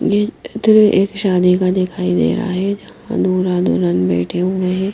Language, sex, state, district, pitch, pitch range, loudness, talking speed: Hindi, female, Haryana, Jhajjar, 185 Hz, 180-200 Hz, -16 LUFS, 185 wpm